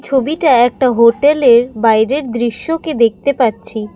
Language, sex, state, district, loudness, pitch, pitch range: Bengali, female, Assam, Kamrup Metropolitan, -13 LUFS, 245 Hz, 230-280 Hz